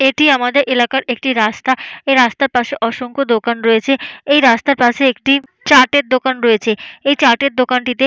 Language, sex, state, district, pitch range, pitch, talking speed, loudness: Bengali, female, West Bengal, Jalpaiguri, 240-275 Hz, 260 Hz, 155 wpm, -13 LUFS